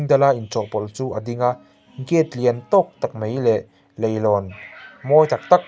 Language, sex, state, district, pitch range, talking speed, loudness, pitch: Mizo, male, Mizoram, Aizawl, 110-140 Hz, 170 wpm, -20 LUFS, 120 Hz